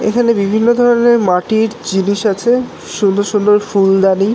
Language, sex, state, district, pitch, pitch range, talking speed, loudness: Bengali, male, West Bengal, North 24 Parganas, 210 Hz, 195-235 Hz, 125 wpm, -13 LUFS